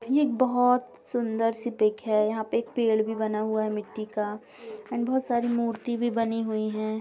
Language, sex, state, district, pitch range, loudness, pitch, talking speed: Hindi, female, Bihar, Jamui, 215-240 Hz, -27 LUFS, 225 Hz, 205 wpm